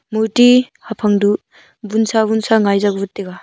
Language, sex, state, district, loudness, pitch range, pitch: Wancho, female, Arunachal Pradesh, Longding, -15 LUFS, 205-220 Hz, 220 Hz